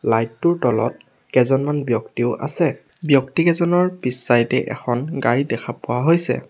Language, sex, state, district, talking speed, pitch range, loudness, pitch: Assamese, male, Assam, Sonitpur, 150 wpm, 120-160 Hz, -19 LUFS, 130 Hz